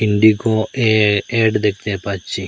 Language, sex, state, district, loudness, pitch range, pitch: Bengali, male, Assam, Hailakandi, -16 LUFS, 105-110 Hz, 110 Hz